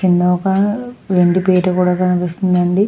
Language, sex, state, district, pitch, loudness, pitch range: Telugu, female, Andhra Pradesh, Krishna, 180 Hz, -15 LUFS, 180-190 Hz